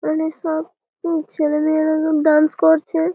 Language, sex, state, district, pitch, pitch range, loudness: Bengali, female, West Bengal, Malda, 315 Hz, 310-320 Hz, -18 LUFS